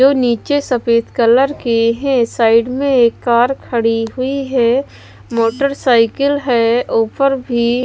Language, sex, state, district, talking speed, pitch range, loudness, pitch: Hindi, female, Bihar, West Champaran, 130 wpm, 230-270 Hz, -14 LUFS, 245 Hz